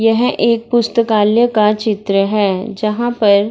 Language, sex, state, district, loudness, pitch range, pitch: Hindi, female, Bihar, Darbhanga, -14 LUFS, 205-230 Hz, 215 Hz